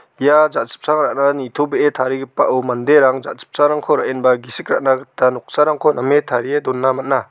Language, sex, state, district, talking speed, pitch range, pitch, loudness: Garo, male, Meghalaya, South Garo Hills, 130 wpm, 130-145 Hz, 135 Hz, -16 LUFS